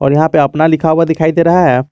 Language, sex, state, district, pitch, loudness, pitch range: Hindi, male, Jharkhand, Garhwa, 160 Hz, -11 LUFS, 145-160 Hz